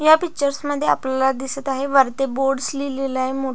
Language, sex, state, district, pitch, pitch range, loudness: Marathi, female, Maharashtra, Pune, 270 Hz, 265-280 Hz, -20 LUFS